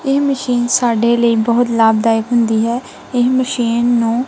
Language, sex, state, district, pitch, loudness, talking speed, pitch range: Punjabi, female, Punjab, Kapurthala, 235 Hz, -14 LUFS, 155 wpm, 230-245 Hz